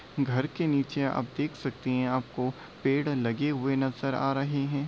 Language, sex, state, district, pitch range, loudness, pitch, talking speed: Hindi, male, Bihar, Bhagalpur, 130-140 Hz, -29 LUFS, 135 Hz, 185 wpm